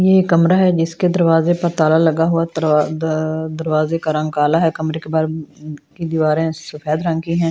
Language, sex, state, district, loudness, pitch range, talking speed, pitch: Hindi, female, Delhi, New Delhi, -17 LUFS, 155-165 Hz, 185 wpm, 160 Hz